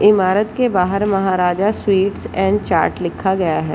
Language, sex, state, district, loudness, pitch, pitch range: Hindi, female, Jharkhand, Sahebganj, -17 LUFS, 195 Hz, 185-205 Hz